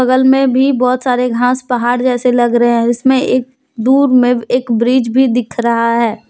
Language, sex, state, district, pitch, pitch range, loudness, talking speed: Hindi, female, Jharkhand, Deoghar, 250 Hz, 240-255 Hz, -12 LUFS, 200 wpm